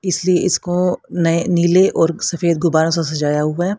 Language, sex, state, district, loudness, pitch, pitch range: Hindi, female, Haryana, Rohtak, -16 LUFS, 170 Hz, 165-180 Hz